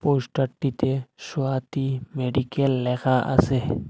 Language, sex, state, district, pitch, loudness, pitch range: Bengali, male, Assam, Hailakandi, 135 Hz, -24 LUFS, 130-135 Hz